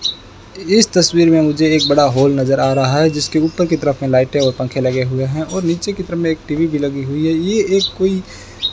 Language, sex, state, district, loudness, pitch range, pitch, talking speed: Hindi, male, Rajasthan, Bikaner, -15 LUFS, 135-170 Hz, 150 Hz, 255 wpm